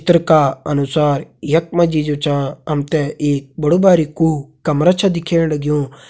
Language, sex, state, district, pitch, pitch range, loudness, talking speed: Hindi, male, Uttarakhand, Uttarkashi, 150 Hz, 145-165 Hz, -16 LUFS, 175 wpm